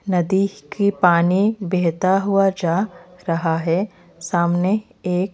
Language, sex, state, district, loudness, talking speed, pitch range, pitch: Hindi, female, Odisha, Malkangiri, -19 LUFS, 110 wpm, 170-195 Hz, 185 Hz